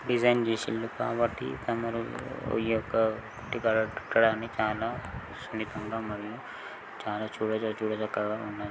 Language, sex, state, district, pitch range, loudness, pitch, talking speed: Telugu, male, Telangana, Nalgonda, 110-115 Hz, -31 LUFS, 110 Hz, 95 wpm